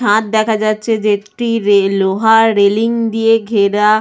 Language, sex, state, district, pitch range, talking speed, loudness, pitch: Bengali, female, West Bengal, Purulia, 205-225 Hz, 135 wpm, -13 LUFS, 215 Hz